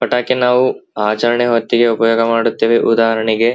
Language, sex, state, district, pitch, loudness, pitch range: Kannada, male, Karnataka, Belgaum, 115 Hz, -14 LUFS, 115-120 Hz